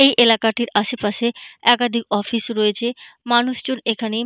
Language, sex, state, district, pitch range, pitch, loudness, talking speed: Bengali, female, West Bengal, Malda, 220-240 Hz, 235 Hz, -19 LUFS, 115 wpm